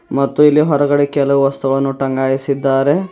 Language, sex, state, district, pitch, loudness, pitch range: Kannada, male, Karnataka, Bidar, 140 Hz, -14 LUFS, 135-145 Hz